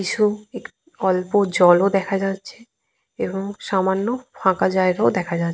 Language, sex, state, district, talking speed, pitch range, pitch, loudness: Bengali, female, Jharkhand, Jamtara, 140 wpm, 185-205 Hz, 195 Hz, -20 LUFS